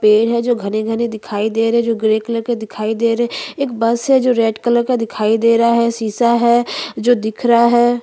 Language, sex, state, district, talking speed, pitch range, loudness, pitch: Hindi, female, Chhattisgarh, Bastar, 155 wpm, 220-240 Hz, -16 LUFS, 230 Hz